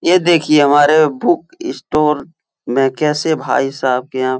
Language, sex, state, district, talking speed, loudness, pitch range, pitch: Hindi, male, Uttar Pradesh, Etah, 165 wpm, -14 LUFS, 135-160 Hz, 150 Hz